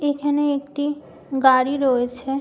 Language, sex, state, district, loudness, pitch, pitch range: Bengali, female, West Bengal, Malda, -20 LUFS, 280 Hz, 265-290 Hz